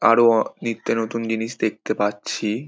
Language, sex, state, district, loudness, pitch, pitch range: Bengali, male, West Bengal, Dakshin Dinajpur, -22 LUFS, 115 Hz, 110-115 Hz